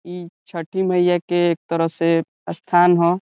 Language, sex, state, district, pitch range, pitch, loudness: Bhojpuri, male, Bihar, Saran, 170-180 Hz, 175 Hz, -19 LUFS